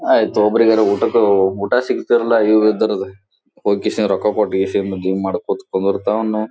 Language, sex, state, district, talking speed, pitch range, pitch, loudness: Kannada, male, Karnataka, Gulbarga, 130 wpm, 95-110 Hz, 105 Hz, -16 LUFS